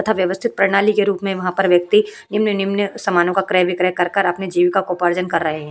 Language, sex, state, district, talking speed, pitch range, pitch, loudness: Hindi, female, Uttar Pradesh, Hamirpur, 230 wpm, 180-200 Hz, 190 Hz, -17 LUFS